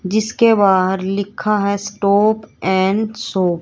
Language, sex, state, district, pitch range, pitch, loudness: Hindi, female, Haryana, Rohtak, 190-215 Hz, 200 Hz, -16 LUFS